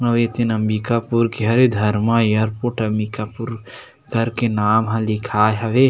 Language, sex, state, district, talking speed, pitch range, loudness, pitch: Chhattisgarhi, male, Chhattisgarh, Sarguja, 150 wpm, 110-115 Hz, -19 LUFS, 115 Hz